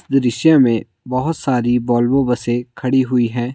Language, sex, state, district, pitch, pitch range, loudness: Hindi, male, Himachal Pradesh, Shimla, 125 Hz, 120-135 Hz, -17 LUFS